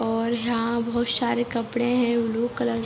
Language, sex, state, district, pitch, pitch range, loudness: Hindi, female, Jharkhand, Jamtara, 235 Hz, 230-240 Hz, -24 LUFS